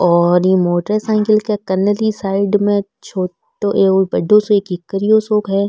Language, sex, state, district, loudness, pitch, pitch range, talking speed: Marwari, female, Rajasthan, Nagaur, -15 LUFS, 200 Hz, 190-210 Hz, 135 wpm